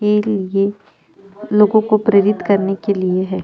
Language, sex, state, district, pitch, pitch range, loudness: Hindi, female, Chhattisgarh, Jashpur, 200 Hz, 195-210 Hz, -16 LUFS